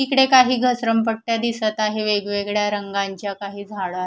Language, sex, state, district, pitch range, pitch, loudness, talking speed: Marathi, female, Maharashtra, Mumbai Suburban, 200-230 Hz, 215 Hz, -20 LUFS, 150 wpm